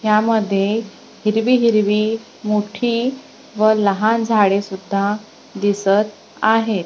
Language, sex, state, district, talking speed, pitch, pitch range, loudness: Marathi, female, Maharashtra, Gondia, 80 wpm, 215 Hz, 205-225 Hz, -18 LUFS